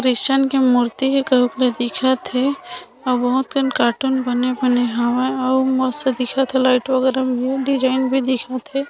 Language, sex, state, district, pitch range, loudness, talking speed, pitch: Hindi, female, Chhattisgarh, Bilaspur, 250-265 Hz, -18 LUFS, 190 wpm, 260 Hz